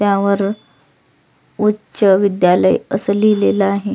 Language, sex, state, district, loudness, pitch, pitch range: Marathi, female, Maharashtra, Solapur, -15 LUFS, 200 Hz, 200-210 Hz